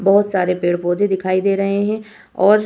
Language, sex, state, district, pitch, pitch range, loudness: Hindi, female, Bihar, Vaishali, 195 Hz, 185-205 Hz, -18 LUFS